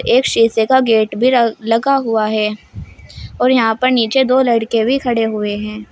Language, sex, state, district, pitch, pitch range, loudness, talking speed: Hindi, female, Uttar Pradesh, Shamli, 230 Hz, 220-255 Hz, -14 LUFS, 180 wpm